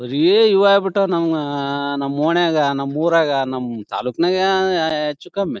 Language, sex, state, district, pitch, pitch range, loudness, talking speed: Kannada, male, Karnataka, Bellary, 160 Hz, 140-190 Hz, -18 LUFS, 130 wpm